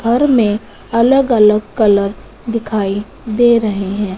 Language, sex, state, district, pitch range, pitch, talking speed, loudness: Hindi, female, Punjab, Fazilka, 205-235 Hz, 215 Hz, 130 wpm, -14 LUFS